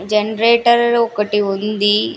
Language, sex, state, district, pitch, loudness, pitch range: Telugu, female, Andhra Pradesh, Sri Satya Sai, 210 Hz, -15 LUFS, 205-235 Hz